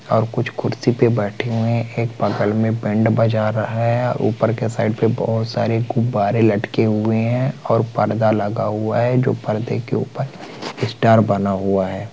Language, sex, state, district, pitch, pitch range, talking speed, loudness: Hindi, male, Bihar, Vaishali, 115 Hz, 110-120 Hz, 185 wpm, -19 LUFS